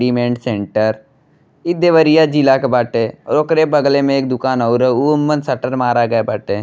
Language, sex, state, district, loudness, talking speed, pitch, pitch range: Bhojpuri, male, Uttar Pradesh, Deoria, -15 LUFS, 180 wpm, 130 Hz, 120-150 Hz